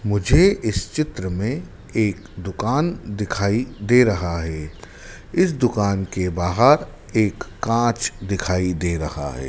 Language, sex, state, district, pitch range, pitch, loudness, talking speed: Hindi, male, Madhya Pradesh, Dhar, 90-120 Hz, 105 Hz, -21 LUFS, 125 wpm